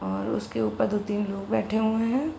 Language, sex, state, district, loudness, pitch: Hindi, female, Uttar Pradesh, Gorakhpur, -27 LUFS, 205 Hz